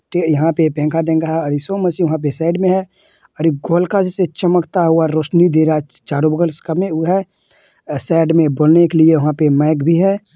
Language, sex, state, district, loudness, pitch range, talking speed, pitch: Hindi, male, Bihar, Madhepura, -15 LUFS, 155-175 Hz, 180 wpm, 165 Hz